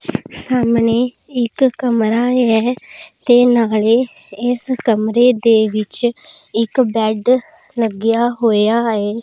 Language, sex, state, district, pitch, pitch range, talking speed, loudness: Punjabi, female, Punjab, Pathankot, 235 Hz, 225-250 Hz, 95 wpm, -15 LUFS